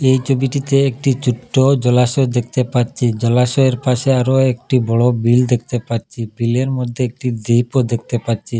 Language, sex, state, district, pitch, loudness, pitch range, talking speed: Bengali, male, Assam, Hailakandi, 125 Hz, -16 LUFS, 120-130 Hz, 145 wpm